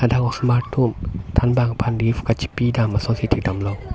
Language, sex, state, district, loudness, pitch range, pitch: Karbi, male, Assam, Karbi Anglong, -20 LUFS, 100-120 Hz, 115 Hz